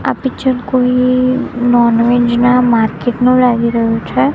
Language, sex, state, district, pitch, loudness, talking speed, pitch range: Gujarati, female, Gujarat, Gandhinagar, 245 Hz, -12 LUFS, 150 wpm, 235-255 Hz